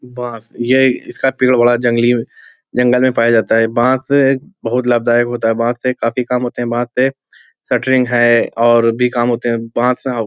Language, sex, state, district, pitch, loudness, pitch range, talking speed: Hindi, male, Uttar Pradesh, Hamirpur, 120 Hz, -14 LUFS, 120-125 Hz, 210 wpm